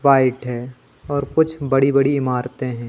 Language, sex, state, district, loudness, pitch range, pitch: Hindi, male, Madhya Pradesh, Katni, -19 LUFS, 125-140 Hz, 135 Hz